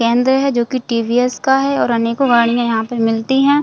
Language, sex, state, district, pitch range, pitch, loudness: Hindi, female, Chhattisgarh, Bilaspur, 230-265 Hz, 240 Hz, -15 LUFS